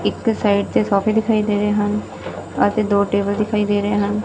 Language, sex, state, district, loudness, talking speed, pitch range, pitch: Punjabi, female, Punjab, Fazilka, -18 LUFS, 210 wpm, 205-215 Hz, 205 Hz